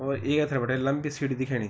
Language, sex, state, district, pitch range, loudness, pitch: Garhwali, male, Uttarakhand, Tehri Garhwal, 130-145 Hz, -27 LUFS, 135 Hz